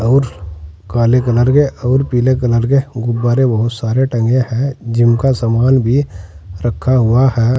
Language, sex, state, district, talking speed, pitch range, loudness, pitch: Hindi, male, Uttar Pradesh, Saharanpur, 175 wpm, 115-130 Hz, -14 LUFS, 120 Hz